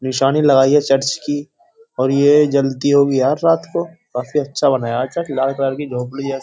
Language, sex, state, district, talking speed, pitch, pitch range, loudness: Hindi, male, Uttar Pradesh, Jyotiba Phule Nagar, 205 wpm, 140 Hz, 135-150 Hz, -16 LUFS